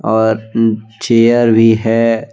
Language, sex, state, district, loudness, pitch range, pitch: Hindi, male, Jharkhand, Deoghar, -12 LUFS, 110-115 Hz, 115 Hz